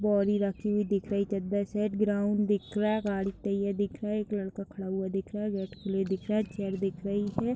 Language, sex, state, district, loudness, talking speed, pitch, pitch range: Hindi, female, Jharkhand, Jamtara, -31 LUFS, 255 wpm, 200 Hz, 195-210 Hz